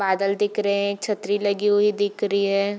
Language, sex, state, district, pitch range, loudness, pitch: Hindi, female, Bihar, Darbhanga, 200-205 Hz, -22 LUFS, 205 Hz